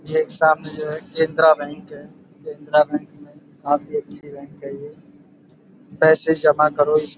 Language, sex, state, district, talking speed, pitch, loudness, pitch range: Hindi, male, Uttar Pradesh, Budaun, 150 wpm, 150 Hz, -17 LUFS, 145-160 Hz